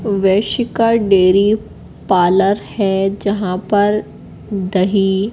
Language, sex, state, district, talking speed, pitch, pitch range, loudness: Hindi, female, Madhya Pradesh, Katni, 90 wpm, 200 Hz, 190-210 Hz, -15 LUFS